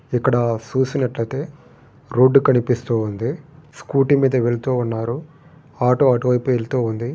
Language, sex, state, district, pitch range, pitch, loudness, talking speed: Telugu, male, Andhra Pradesh, Guntur, 120-140 Hz, 125 Hz, -19 LUFS, 85 wpm